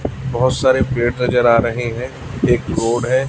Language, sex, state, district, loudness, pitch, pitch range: Hindi, male, Chhattisgarh, Raipur, -17 LUFS, 125 Hz, 120-130 Hz